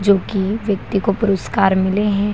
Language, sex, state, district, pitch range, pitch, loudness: Hindi, female, Bihar, Kishanganj, 195-205 Hz, 200 Hz, -18 LUFS